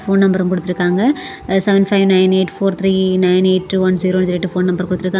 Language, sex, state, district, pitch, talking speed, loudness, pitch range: Tamil, female, Tamil Nadu, Kanyakumari, 185 Hz, 195 wpm, -15 LUFS, 185-195 Hz